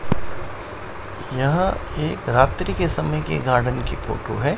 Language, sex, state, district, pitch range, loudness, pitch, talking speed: Hindi, male, Maharashtra, Mumbai Suburban, 85-125 Hz, -22 LUFS, 100 Hz, 130 wpm